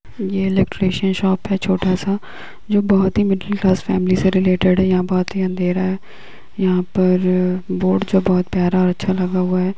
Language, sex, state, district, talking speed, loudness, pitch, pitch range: Hindi, female, Uttar Pradesh, Etah, 190 wpm, -18 LUFS, 185 Hz, 185-195 Hz